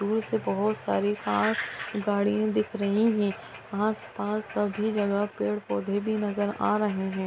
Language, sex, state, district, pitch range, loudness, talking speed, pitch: Hindi, female, Bihar, Kishanganj, 200-215 Hz, -28 LUFS, 150 wpm, 205 Hz